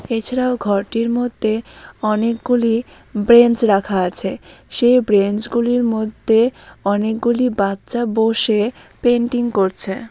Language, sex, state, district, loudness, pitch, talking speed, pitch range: Bengali, female, West Bengal, Dakshin Dinajpur, -17 LUFS, 225 Hz, 95 wpm, 210-240 Hz